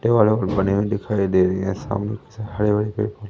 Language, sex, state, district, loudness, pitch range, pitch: Hindi, male, Madhya Pradesh, Umaria, -21 LUFS, 100-105 Hz, 105 Hz